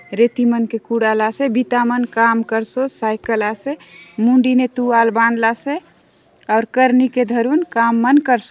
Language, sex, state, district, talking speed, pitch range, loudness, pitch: Halbi, female, Chhattisgarh, Bastar, 170 wpm, 225-255 Hz, -16 LUFS, 235 Hz